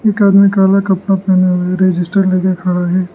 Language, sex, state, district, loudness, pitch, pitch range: Hindi, male, Arunachal Pradesh, Lower Dibang Valley, -12 LUFS, 185 Hz, 185-195 Hz